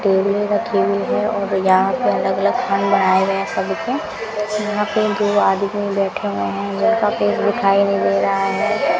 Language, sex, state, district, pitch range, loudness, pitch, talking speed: Hindi, female, Rajasthan, Bikaner, 190-205 Hz, -18 LUFS, 195 Hz, 175 wpm